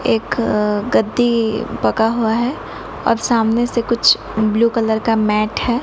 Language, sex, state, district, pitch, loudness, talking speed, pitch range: Hindi, female, Odisha, Nuapada, 225 Hz, -17 LUFS, 145 wpm, 220-235 Hz